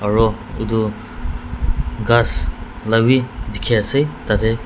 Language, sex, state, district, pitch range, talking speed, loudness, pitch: Nagamese, male, Nagaland, Dimapur, 80-115 Hz, 75 wpm, -19 LUFS, 110 Hz